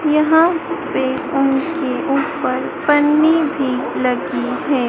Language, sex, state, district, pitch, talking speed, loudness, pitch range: Hindi, female, Madhya Pradesh, Dhar, 290 Hz, 100 wpm, -17 LUFS, 270-315 Hz